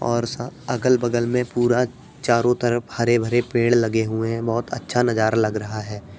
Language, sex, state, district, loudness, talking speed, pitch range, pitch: Hindi, male, Uttar Pradesh, Etah, -21 LUFS, 185 wpm, 115-120 Hz, 120 Hz